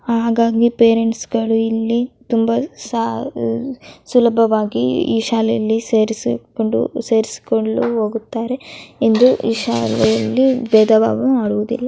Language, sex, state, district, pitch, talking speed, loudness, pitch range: Kannada, female, Karnataka, Dharwad, 225 Hz, 85 wpm, -17 LUFS, 220-235 Hz